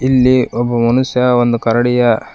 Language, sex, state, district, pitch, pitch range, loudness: Kannada, female, Karnataka, Koppal, 120 Hz, 120-125 Hz, -13 LUFS